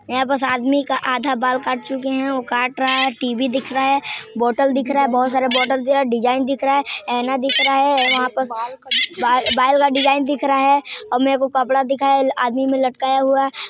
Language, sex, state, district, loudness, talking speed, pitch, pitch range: Hindi, male, Chhattisgarh, Sarguja, -18 LUFS, 230 wpm, 265 Hz, 255-275 Hz